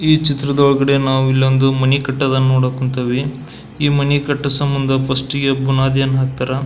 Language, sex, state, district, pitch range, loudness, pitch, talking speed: Kannada, male, Karnataka, Belgaum, 130-140 Hz, -16 LUFS, 135 Hz, 145 wpm